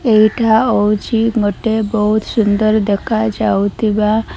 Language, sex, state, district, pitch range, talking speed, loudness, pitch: Odia, female, Odisha, Malkangiri, 210-220 Hz, 95 wpm, -14 LUFS, 215 Hz